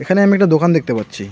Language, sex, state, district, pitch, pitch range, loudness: Bengali, male, West Bengal, Alipurduar, 160 Hz, 115-195 Hz, -14 LUFS